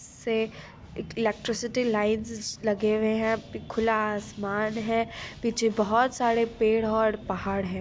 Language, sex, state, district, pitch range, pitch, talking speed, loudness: Hindi, female, Bihar, Purnia, 215-230 Hz, 220 Hz, 140 wpm, -27 LUFS